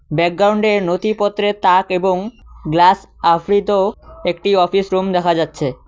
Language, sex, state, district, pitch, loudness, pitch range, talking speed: Bengali, male, West Bengal, Cooch Behar, 185 Hz, -16 LUFS, 175-205 Hz, 110 wpm